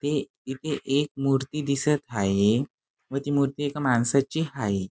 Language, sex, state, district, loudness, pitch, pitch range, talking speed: Marathi, male, Maharashtra, Sindhudurg, -26 LUFS, 140 Hz, 125-145 Hz, 145 wpm